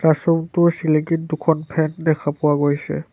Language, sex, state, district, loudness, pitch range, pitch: Assamese, male, Assam, Sonitpur, -19 LUFS, 150-165 Hz, 160 Hz